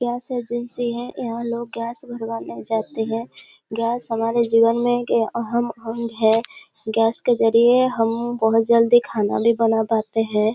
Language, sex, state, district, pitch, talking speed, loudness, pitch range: Hindi, female, Bihar, Kishanganj, 230 Hz, 160 wpm, -21 LUFS, 225-240 Hz